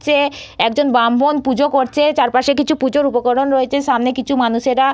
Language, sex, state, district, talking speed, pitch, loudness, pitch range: Bengali, female, West Bengal, Purulia, 160 wpm, 270 Hz, -15 LUFS, 255-290 Hz